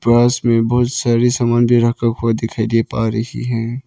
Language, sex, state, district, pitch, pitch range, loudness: Hindi, male, Arunachal Pradesh, Lower Dibang Valley, 120 Hz, 115-120 Hz, -16 LUFS